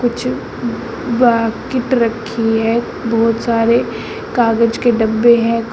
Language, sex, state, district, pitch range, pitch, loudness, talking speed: Hindi, female, Uttar Pradesh, Shamli, 225-240 Hz, 230 Hz, -15 LUFS, 105 wpm